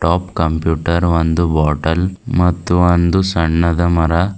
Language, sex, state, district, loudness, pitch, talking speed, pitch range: Kannada, female, Karnataka, Bidar, -15 LUFS, 85 Hz, 95 wpm, 80-90 Hz